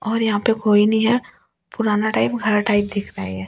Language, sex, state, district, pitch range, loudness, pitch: Hindi, female, Delhi, New Delhi, 205-225 Hz, -19 LUFS, 215 Hz